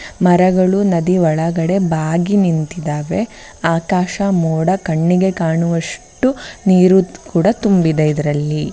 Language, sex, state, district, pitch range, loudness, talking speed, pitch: Kannada, female, Karnataka, Bellary, 160-190 Hz, -15 LUFS, 95 wpm, 175 Hz